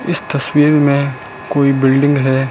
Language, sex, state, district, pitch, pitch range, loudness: Hindi, male, Rajasthan, Bikaner, 140 Hz, 135-145 Hz, -14 LUFS